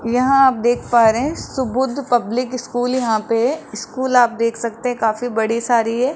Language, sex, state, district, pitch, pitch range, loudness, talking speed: Hindi, male, Rajasthan, Jaipur, 245 Hz, 230-255 Hz, -18 LUFS, 195 wpm